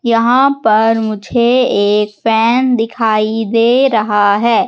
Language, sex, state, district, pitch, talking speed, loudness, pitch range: Hindi, female, Madhya Pradesh, Katni, 225 Hz, 115 wpm, -12 LUFS, 215-240 Hz